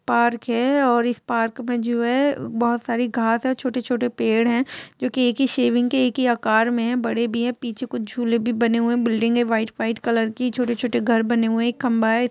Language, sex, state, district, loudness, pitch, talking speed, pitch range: Hindi, female, Jharkhand, Jamtara, -21 LUFS, 235 Hz, 250 wpm, 230-245 Hz